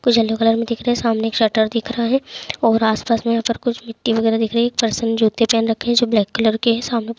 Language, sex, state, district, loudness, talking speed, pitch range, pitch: Hindi, female, Chhattisgarh, Raigarh, -18 LUFS, 310 wpm, 225-235 Hz, 230 Hz